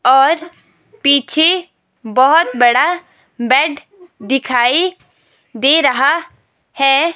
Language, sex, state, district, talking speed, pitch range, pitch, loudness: Hindi, female, Himachal Pradesh, Shimla, 75 wpm, 250-335 Hz, 275 Hz, -13 LUFS